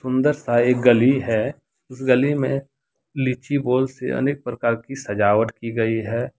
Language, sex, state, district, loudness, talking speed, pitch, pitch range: Hindi, male, Jharkhand, Deoghar, -21 LUFS, 170 wpm, 130 Hz, 115-135 Hz